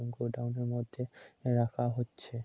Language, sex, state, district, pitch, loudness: Bengali, male, West Bengal, Kolkata, 120 Hz, -35 LUFS